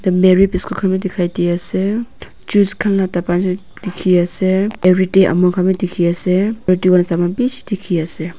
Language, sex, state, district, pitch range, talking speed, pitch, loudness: Nagamese, female, Nagaland, Dimapur, 175-195 Hz, 130 wpm, 185 Hz, -16 LUFS